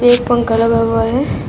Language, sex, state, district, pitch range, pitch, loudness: Hindi, female, Uttar Pradesh, Shamli, 230-245 Hz, 230 Hz, -14 LUFS